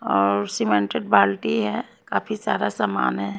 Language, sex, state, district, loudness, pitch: Hindi, female, Haryana, Jhajjar, -22 LUFS, 100 Hz